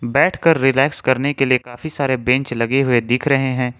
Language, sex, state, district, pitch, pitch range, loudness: Hindi, male, Jharkhand, Ranchi, 135 Hz, 125-140 Hz, -17 LUFS